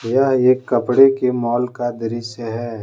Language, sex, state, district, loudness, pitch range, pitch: Hindi, male, Jharkhand, Deoghar, -17 LUFS, 115-130 Hz, 120 Hz